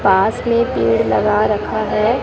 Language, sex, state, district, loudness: Hindi, female, Rajasthan, Bikaner, -16 LUFS